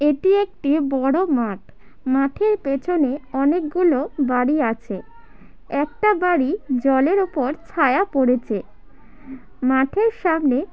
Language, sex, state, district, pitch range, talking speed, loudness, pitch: Bengali, female, West Bengal, Paschim Medinipur, 265-355 Hz, 95 wpm, -20 LUFS, 285 Hz